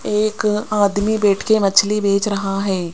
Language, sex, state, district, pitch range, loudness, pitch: Hindi, female, Rajasthan, Jaipur, 200-210 Hz, -17 LUFS, 205 Hz